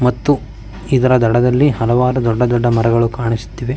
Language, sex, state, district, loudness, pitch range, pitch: Kannada, male, Karnataka, Mysore, -15 LUFS, 115-125 Hz, 120 Hz